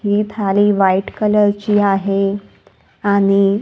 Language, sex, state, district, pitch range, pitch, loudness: Marathi, female, Maharashtra, Gondia, 195-205 Hz, 200 Hz, -15 LUFS